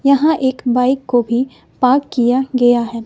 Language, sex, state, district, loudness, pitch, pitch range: Hindi, female, Bihar, West Champaran, -15 LUFS, 255 Hz, 245-265 Hz